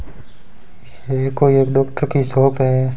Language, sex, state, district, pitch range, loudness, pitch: Hindi, male, Rajasthan, Bikaner, 130-135 Hz, -16 LUFS, 135 Hz